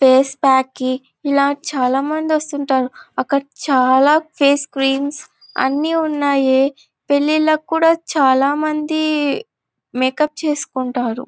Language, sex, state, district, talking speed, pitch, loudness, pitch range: Telugu, female, Andhra Pradesh, Anantapur, 95 wpm, 280 Hz, -17 LUFS, 265-305 Hz